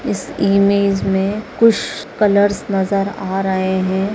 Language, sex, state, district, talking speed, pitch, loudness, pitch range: Hindi, female, Chhattisgarh, Raigarh, 130 wpm, 195 Hz, -16 LUFS, 190-205 Hz